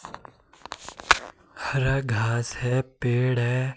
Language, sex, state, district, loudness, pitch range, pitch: Hindi, male, Himachal Pradesh, Shimla, -25 LUFS, 120-130 Hz, 125 Hz